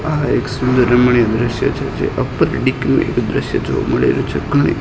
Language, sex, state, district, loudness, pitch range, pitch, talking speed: Gujarati, male, Gujarat, Gandhinagar, -16 LUFS, 120-130 Hz, 125 Hz, 175 wpm